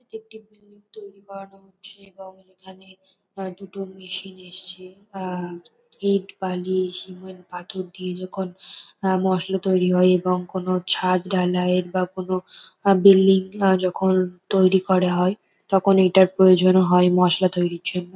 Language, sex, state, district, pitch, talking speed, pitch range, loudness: Bengali, female, West Bengal, North 24 Parganas, 185 Hz, 140 wpm, 185-195 Hz, -20 LUFS